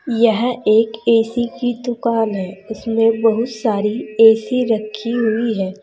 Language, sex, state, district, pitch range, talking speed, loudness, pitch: Hindi, female, Uttar Pradesh, Saharanpur, 220-235 Hz, 135 wpm, -17 LUFS, 225 Hz